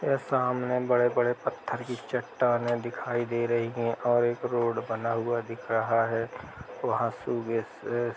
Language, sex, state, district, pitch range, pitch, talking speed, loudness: Hindi, male, Uttar Pradesh, Jalaun, 115-120 Hz, 120 Hz, 155 wpm, -29 LUFS